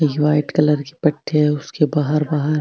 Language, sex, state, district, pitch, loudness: Marwari, female, Rajasthan, Nagaur, 150 Hz, -18 LUFS